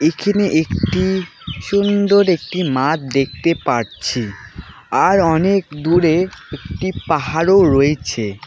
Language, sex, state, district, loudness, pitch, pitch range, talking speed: Bengali, male, West Bengal, Alipurduar, -16 LUFS, 160 Hz, 125-185 Hz, 90 wpm